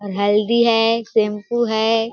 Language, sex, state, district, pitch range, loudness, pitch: Hindi, female, Chhattisgarh, Balrampur, 210-230 Hz, -17 LUFS, 225 Hz